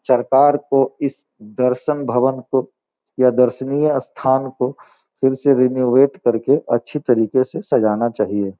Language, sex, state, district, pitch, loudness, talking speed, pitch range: Hindi, male, Bihar, Gopalganj, 130 Hz, -18 LUFS, 135 wpm, 120-135 Hz